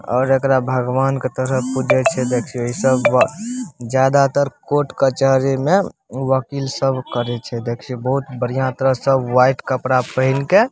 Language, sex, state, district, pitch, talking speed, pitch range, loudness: Maithili, male, Bihar, Samastipur, 130 Hz, 160 wpm, 125-135 Hz, -18 LUFS